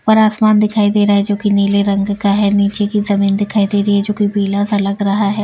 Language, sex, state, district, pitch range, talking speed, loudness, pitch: Hindi, female, Bihar, Patna, 200-210 Hz, 275 wpm, -14 LUFS, 205 Hz